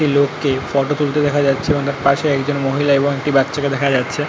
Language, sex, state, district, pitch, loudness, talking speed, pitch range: Bengali, male, West Bengal, North 24 Parganas, 140 Hz, -17 LUFS, 250 wpm, 140-145 Hz